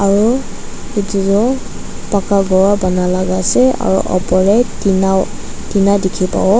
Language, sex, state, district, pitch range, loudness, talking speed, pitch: Nagamese, female, Nagaland, Dimapur, 190-210 Hz, -14 LUFS, 145 wpm, 200 Hz